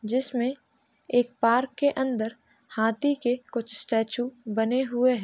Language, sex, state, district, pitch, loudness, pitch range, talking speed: Hindi, female, Uttar Pradesh, Hamirpur, 245 Hz, -26 LUFS, 225-260 Hz, 135 wpm